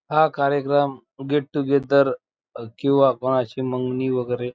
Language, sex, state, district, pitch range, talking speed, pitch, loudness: Marathi, male, Maharashtra, Dhule, 125-140 Hz, 130 wpm, 135 Hz, -21 LUFS